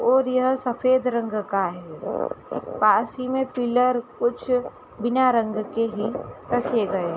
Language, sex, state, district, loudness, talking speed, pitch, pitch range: Hindi, female, Uttar Pradesh, Hamirpur, -23 LUFS, 150 wpm, 245 Hz, 220-255 Hz